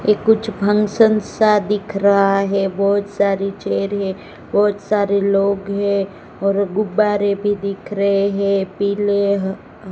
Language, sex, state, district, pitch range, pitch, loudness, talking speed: Hindi, female, Gujarat, Gandhinagar, 195-205 Hz, 200 Hz, -18 LUFS, 145 wpm